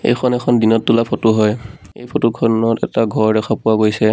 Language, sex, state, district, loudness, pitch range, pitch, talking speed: Assamese, male, Assam, Sonitpur, -15 LUFS, 110-120 Hz, 115 Hz, 205 wpm